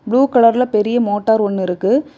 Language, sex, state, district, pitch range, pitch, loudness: Tamil, female, Tamil Nadu, Kanyakumari, 205-250 Hz, 230 Hz, -15 LUFS